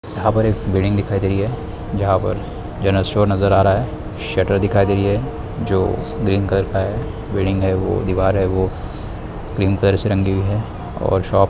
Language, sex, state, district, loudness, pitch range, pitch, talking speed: Hindi, male, Chhattisgarh, Balrampur, -19 LUFS, 95-100 Hz, 100 Hz, 200 wpm